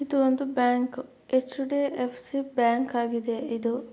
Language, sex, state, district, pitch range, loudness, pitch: Kannada, female, Karnataka, Mysore, 240-270 Hz, -27 LUFS, 255 Hz